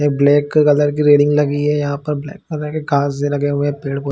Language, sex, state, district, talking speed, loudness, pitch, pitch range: Hindi, male, Chhattisgarh, Bilaspur, 290 wpm, -16 LUFS, 145 Hz, 145-150 Hz